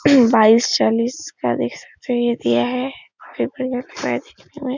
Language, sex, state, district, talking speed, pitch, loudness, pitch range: Hindi, female, Uttar Pradesh, Etah, 125 wpm, 250 Hz, -19 LUFS, 230-260 Hz